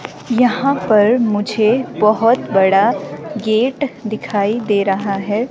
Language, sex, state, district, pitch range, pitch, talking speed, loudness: Hindi, female, Himachal Pradesh, Shimla, 205-240 Hz, 215 Hz, 110 wpm, -16 LUFS